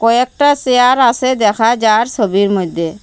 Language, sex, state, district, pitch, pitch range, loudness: Bengali, female, Assam, Hailakandi, 230 Hz, 205-255 Hz, -12 LUFS